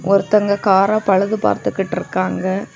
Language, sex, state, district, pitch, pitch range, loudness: Tamil, female, Tamil Nadu, Kanyakumari, 195 Hz, 190-200 Hz, -17 LUFS